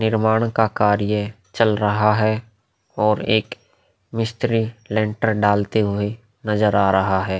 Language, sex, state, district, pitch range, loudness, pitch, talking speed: Hindi, male, Uttar Pradesh, Hamirpur, 105-110 Hz, -20 LUFS, 110 Hz, 130 wpm